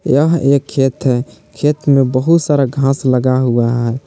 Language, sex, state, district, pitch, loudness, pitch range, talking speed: Hindi, male, Jharkhand, Palamu, 135 Hz, -14 LUFS, 125-145 Hz, 175 wpm